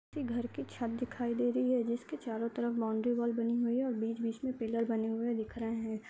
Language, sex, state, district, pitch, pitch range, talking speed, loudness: Hindi, male, Uttar Pradesh, Hamirpur, 235 Hz, 225-240 Hz, 255 wpm, -35 LUFS